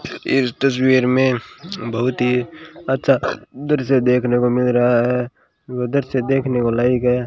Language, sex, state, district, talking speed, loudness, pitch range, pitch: Hindi, male, Rajasthan, Bikaner, 165 wpm, -18 LUFS, 125-135 Hz, 125 Hz